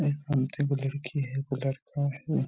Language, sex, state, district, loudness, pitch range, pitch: Hindi, male, Bihar, Lakhisarai, -30 LUFS, 135-145 Hz, 140 Hz